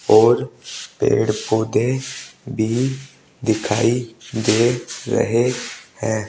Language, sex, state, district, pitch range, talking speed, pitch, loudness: Hindi, male, Rajasthan, Jaipur, 110-125 Hz, 75 wpm, 120 Hz, -20 LUFS